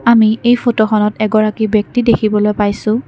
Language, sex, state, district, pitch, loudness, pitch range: Assamese, female, Assam, Kamrup Metropolitan, 215 Hz, -13 LUFS, 215-230 Hz